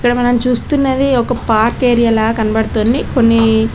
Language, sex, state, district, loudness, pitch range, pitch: Telugu, female, Telangana, Karimnagar, -13 LUFS, 225-250 Hz, 240 Hz